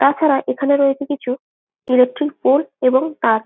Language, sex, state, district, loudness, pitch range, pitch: Bengali, female, West Bengal, Malda, -17 LUFS, 255-285 Hz, 275 Hz